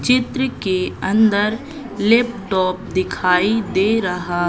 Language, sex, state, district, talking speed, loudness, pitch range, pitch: Hindi, female, Madhya Pradesh, Katni, 95 wpm, -18 LUFS, 185-230 Hz, 205 Hz